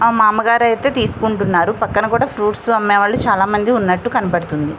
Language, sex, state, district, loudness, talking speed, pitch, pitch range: Telugu, female, Andhra Pradesh, Visakhapatnam, -15 LUFS, 150 wpm, 215 Hz, 200-230 Hz